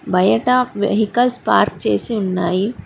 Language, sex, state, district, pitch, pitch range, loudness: Telugu, female, Telangana, Hyderabad, 210 Hz, 190-245 Hz, -17 LUFS